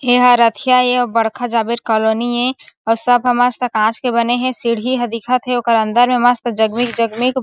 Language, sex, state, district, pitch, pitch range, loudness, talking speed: Chhattisgarhi, female, Chhattisgarh, Sarguja, 245 Hz, 230-250 Hz, -15 LUFS, 200 wpm